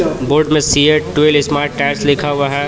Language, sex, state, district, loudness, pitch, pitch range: Hindi, male, Jharkhand, Palamu, -13 LUFS, 145 Hz, 145-150 Hz